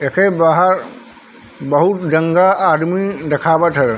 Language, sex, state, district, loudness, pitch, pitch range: Chhattisgarhi, male, Chhattisgarh, Bilaspur, -14 LUFS, 170 Hz, 160-190 Hz